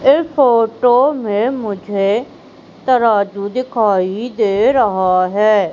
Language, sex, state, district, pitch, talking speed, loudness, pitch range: Hindi, male, Madhya Pradesh, Umaria, 215 Hz, 95 wpm, -15 LUFS, 200-250 Hz